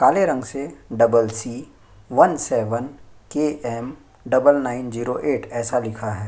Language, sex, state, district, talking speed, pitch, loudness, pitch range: Hindi, male, Chhattisgarh, Sukma, 145 wpm, 120 Hz, -21 LUFS, 115-140 Hz